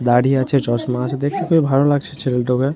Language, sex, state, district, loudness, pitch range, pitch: Bengali, male, West Bengal, Jhargram, -18 LUFS, 125-145 Hz, 135 Hz